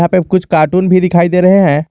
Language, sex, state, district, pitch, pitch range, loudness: Hindi, male, Jharkhand, Garhwa, 180 Hz, 170-185 Hz, -10 LUFS